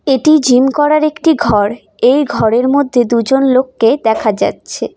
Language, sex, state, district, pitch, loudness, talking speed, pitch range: Bengali, female, West Bengal, Cooch Behar, 255 Hz, -12 LUFS, 145 wpm, 230-285 Hz